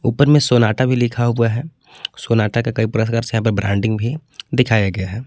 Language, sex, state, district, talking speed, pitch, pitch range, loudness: Hindi, male, Jharkhand, Palamu, 215 wpm, 115 Hz, 110-125 Hz, -17 LUFS